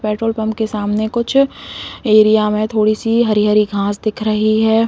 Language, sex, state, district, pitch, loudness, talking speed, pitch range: Hindi, female, Uttar Pradesh, Deoria, 215 Hz, -15 LUFS, 170 wpm, 215-225 Hz